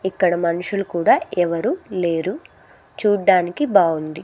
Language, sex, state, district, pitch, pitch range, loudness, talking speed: Telugu, female, Andhra Pradesh, Sri Satya Sai, 175 Hz, 170-190 Hz, -19 LUFS, 100 wpm